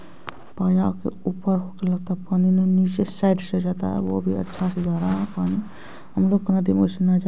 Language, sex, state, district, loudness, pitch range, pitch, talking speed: Hindi, male, Bihar, Kishanganj, -22 LUFS, 170-190 Hz, 185 Hz, 130 wpm